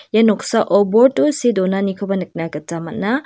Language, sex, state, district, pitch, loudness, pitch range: Garo, female, Meghalaya, West Garo Hills, 205 Hz, -17 LUFS, 190-235 Hz